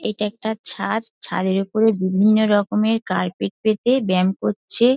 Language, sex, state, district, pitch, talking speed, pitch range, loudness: Bengali, female, West Bengal, Dakshin Dinajpur, 215 Hz, 120 wpm, 195-220 Hz, -20 LUFS